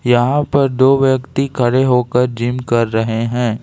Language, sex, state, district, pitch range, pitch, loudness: Hindi, male, Jharkhand, Ranchi, 120-135 Hz, 125 Hz, -15 LUFS